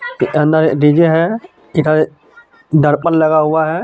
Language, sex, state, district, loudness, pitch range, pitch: Hindi, male, Jharkhand, Deoghar, -13 LUFS, 155-175 Hz, 160 Hz